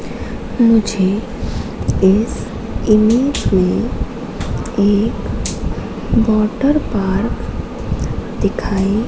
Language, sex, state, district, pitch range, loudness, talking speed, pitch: Hindi, female, Madhya Pradesh, Katni, 200-230 Hz, -17 LUFS, 45 wpm, 215 Hz